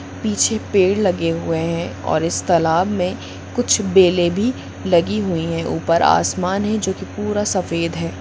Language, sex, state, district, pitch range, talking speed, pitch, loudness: Hindi, female, Jharkhand, Sahebganj, 170-205 Hz, 160 wpm, 185 Hz, -18 LUFS